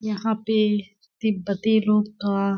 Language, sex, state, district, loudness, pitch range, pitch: Hindi, female, Chhattisgarh, Balrampur, -23 LUFS, 200-215 Hz, 210 Hz